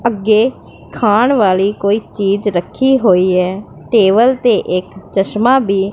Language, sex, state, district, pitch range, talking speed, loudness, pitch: Punjabi, female, Punjab, Pathankot, 195-235 Hz, 130 wpm, -13 LUFS, 205 Hz